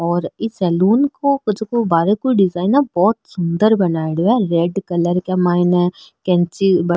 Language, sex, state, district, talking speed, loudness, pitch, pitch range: Marwari, female, Rajasthan, Nagaur, 155 wpm, -17 LUFS, 185 Hz, 175-220 Hz